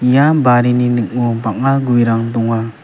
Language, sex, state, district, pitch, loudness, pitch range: Garo, male, Meghalaya, West Garo Hills, 120 Hz, -14 LUFS, 115-125 Hz